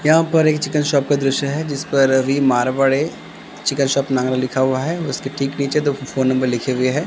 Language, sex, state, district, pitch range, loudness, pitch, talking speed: Hindi, male, Maharashtra, Gondia, 130-150 Hz, -18 LUFS, 135 Hz, 235 wpm